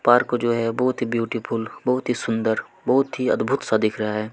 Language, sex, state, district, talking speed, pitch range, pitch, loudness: Hindi, male, Chhattisgarh, Kabirdham, 220 wpm, 110-120 Hz, 115 Hz, -22 LUFS